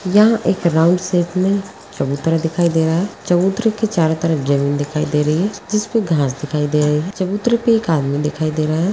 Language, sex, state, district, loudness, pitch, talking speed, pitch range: Hindi, female, Bihar, Purnia, -17 LUFS, 165 Hz, 220 wpm, 150-195 Hz